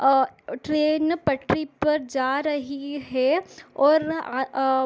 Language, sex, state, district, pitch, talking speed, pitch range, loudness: Hindi, female, Maharashtra, Solapur, 285 Hz, 110 wpm, 265-305 Hz, -24 LUFS